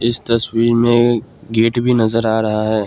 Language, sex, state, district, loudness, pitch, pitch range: Hindi, male, Assam, Kamrup Metropolitan, -15 LUFS, 115 Hz, 110-120 Hz